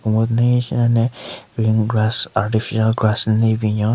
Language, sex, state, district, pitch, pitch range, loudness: Rengma, male, Nagaland, Kohima, 110 Hz, 110-115 Hz, -18 LUFS